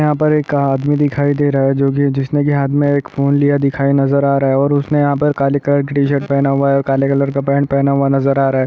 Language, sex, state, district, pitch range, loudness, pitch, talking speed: Hindi, male, Maharashtra, Nagpur, 140-145 Hz, -14 LUFS, 140 Hz, 300 wpm